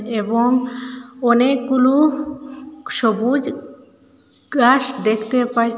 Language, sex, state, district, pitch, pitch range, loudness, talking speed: Bengali, female, Assam, Hailakandi, 255 Hz, 240-275 Hz, -17 LUFS, 60 wpm